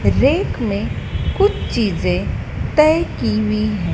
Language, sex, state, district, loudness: Hindi, female, Madhya Pradesh, Dhar, -18 LUFS